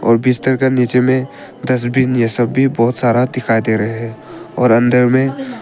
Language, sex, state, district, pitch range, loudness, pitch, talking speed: Hindi, male, Arunachal Pradesh, Papum Pare, 115-130 Hz, -14 LUFS, 125 Hz, 180 wpm